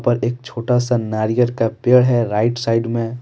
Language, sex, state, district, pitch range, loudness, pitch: Hindi, male, Jharkhand, Deoghar, 115-120 Hz, -18 LUFS, 120 Hz